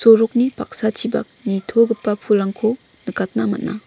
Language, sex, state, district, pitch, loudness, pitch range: Garo, female, Meghalaya, West Garo Hills, 225 Hz, -19 LUFS, 210-235 Hz